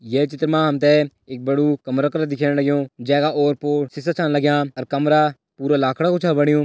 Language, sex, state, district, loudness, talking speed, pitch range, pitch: Garhwali, male, Uttarakhand, Tehri Garhwal, -19 LUFS, 215 wpm, 140-150 Hz, 145 Hz